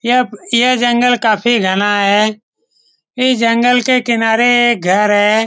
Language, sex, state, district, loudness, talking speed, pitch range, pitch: Hindi, male, Bihar, Saran, -12 LUFS, 145 wpm, 210-245 Hz, 235 Hz